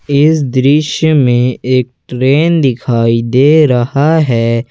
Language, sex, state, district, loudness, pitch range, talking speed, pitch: Hindi, male, Jharkhand, Ranchi, -11 LUFS, 120-150 Hz, 115 wpm, 130 Hz